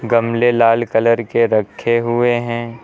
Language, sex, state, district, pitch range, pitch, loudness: Hindi, male, Uttar Pradesh, Lucknow, 115-120 Hz, 115 Hz, -16 LUFS